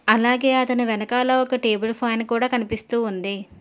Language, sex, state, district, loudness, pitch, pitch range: Telugu, female, Telangana, Hyderabad, -21 LUFS, 235 Hz, 220-250 Hz